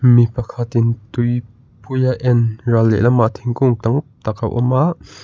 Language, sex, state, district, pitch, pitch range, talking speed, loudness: Mizo, male, Mizoram, Aizawl, 120 Hz, 115-125 Hz, 170 wpm, -17 LUFS